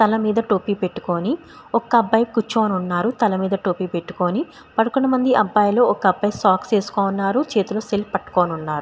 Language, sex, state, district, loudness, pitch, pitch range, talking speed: Telugu, female, Andhra Pradesh, Chittoor, -20 LUFS, 210 Hz, 185-230 Hz, 150 wpm